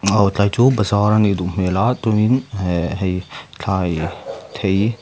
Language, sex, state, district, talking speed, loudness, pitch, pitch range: Mizo, male, Mizoram, Aizawl, 155 wpm, -18 LUFS, 100 Hz, 95-110 Hz